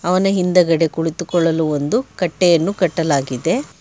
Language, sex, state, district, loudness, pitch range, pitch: Kannada, male, Karnataka, Bangalore, -17 LUFS, 160-180 Hz, 170 Hz